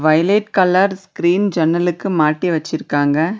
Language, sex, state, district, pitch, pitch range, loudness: Tamil, female, Tamil Nadu, Nilgiris, 175 Hz, 155-190 Hz, -16 LUFS